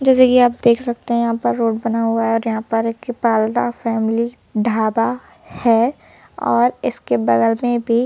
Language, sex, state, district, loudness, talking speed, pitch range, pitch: Hindi, female, Madhya Pradesh, Bhopal, -17 LUFS, 180 wpm, 225-240 Hz, 230 Hz